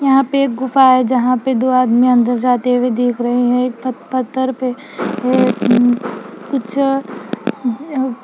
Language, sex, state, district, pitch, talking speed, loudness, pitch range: Hindi, female, Punjab, Fazilka, 255 Hz, 140 wpm, -15 LUFS, 245-260 Hz